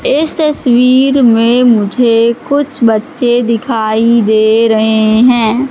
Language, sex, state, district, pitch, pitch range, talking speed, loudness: Hindi, female, Madhya Pradesh, Katni, 235 Hz, 220-260 Hz, 105 wpm, -10 LUFS